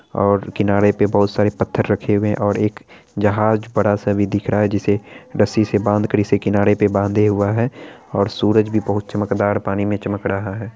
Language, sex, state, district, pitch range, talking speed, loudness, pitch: Hindi, male, Bihar, Araria, 100-105 Hz, 210 wpm, -18 LUFS, 105 Hz